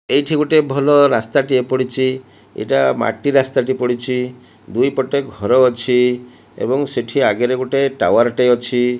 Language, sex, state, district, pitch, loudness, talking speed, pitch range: Odia, male, Odisha, Malkangiri, 130 Hz, -16 LUFS, 125 wpm, 125-135 Hz